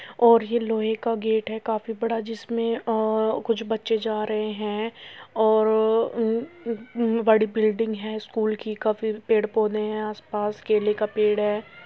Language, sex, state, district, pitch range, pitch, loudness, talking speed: Hindi, female, Uttar Pradesh, Muzaffarnagar, 215-225 Hz, 220 Hz, -24 LUFS, 145 wpm